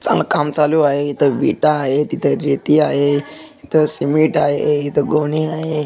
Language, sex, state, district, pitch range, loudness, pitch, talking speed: Marathi, male, Maharashtra, Dhule, 145-155 Hz, -16 LUFS, 150 Hz, 165 wpm